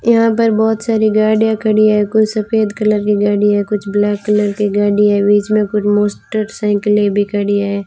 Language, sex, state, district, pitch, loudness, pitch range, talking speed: Hindi, female, Rajasthan, Bikaner, 210 Hz, -14 LUFS, 205-215 Hz, 200 wpm